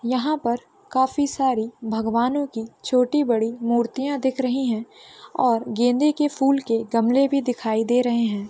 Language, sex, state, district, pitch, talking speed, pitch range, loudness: Hindi, female, Bihar, Muzaffarpur, 245 Hz, 160 wpm, 230-270 Hz, -22 LUFS